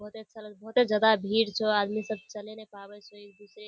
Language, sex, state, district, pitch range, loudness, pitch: Hindi, female, Bihar, Kishanganj, 205-220 Hz, -26 LUFS, 210 Hz